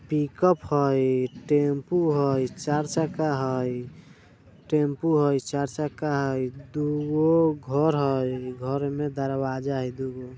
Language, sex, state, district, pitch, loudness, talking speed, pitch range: Bajjika, male, Bihar, Vaishali, 140 Hz, -25 LUFS, 120 wpm, 130-150 Hz